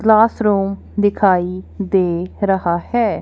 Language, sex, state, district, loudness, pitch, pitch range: Hindi, female, Punjab, Kapurthala, -17 LUFS, 195 Hz, 185-215 Hz